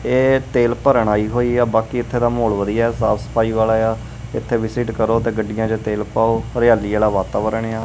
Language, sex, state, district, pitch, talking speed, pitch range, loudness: Punjabi, male, Punjab, Kapurthala, 115 Hz, 205 wpm, 110-120 Hz, -18 LUFS